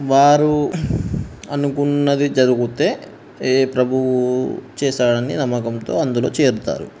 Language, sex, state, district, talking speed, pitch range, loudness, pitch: Telugu, male, Telangana, Nalgonda, 85 wpm, 125-145 Hz, -18 LUFS, 135 Hz